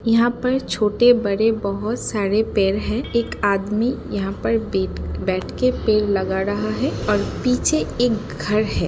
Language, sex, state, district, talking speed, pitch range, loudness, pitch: Hindi, female, Uttar Pradesh, Jalaun, 160 wpm, 200-235 Hz, -20 LUFS, 215 Hz